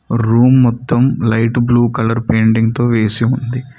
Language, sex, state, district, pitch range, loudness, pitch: Telugu, male, Telangana, Mahabubabad, 115-125 Hz, -13 LUFS, 120 Hz